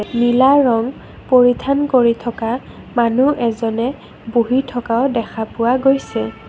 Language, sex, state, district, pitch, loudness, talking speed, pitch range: Assamese, female, Assam, Kamrup Metropolitan, 240 Hz, -16 LUFS, 110 wpm, 230-260 Hz